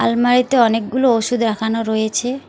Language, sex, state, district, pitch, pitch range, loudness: Bengali, female, West Bengal, Alipurduar, 235 Hz, 225-250 Hz, -16 LUFS